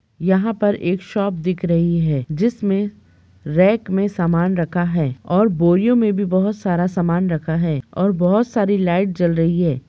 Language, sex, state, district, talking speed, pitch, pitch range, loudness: Hindi, female, Chhattisgarh, Rajnandgaon, 175 wpm, 180 Hz, 170-200 Hz, -18 LUFS